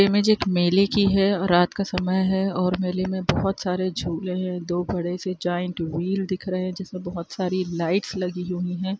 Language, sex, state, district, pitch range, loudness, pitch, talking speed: Hindi, female, Bihar, Araria, 180-190 Hz, -24 LUFS, 185 Hz, 215 wpm